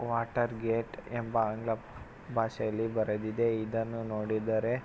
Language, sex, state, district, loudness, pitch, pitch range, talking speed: Kannada, male, Karnataka, Mysore, -33 LUFS, 115 Hz, 110-115 Hz, 110 wpm